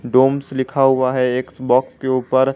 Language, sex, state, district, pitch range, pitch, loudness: Hindi, male, Jharkhand, Garhwa, 130-135 Hz, 130 Hz, -17 LUFS